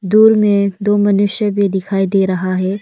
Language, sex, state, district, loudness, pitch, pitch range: Hindi, female, Arunachal Pradesh, Lower Dibang Valley, -14 LUFS, 200 Hz, 190-205 Hz